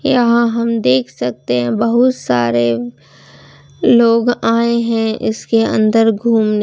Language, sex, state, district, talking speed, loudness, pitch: Hindi, female, Karnataka, Bangalore, 115 wpm, -14 LUFS, 225 Hz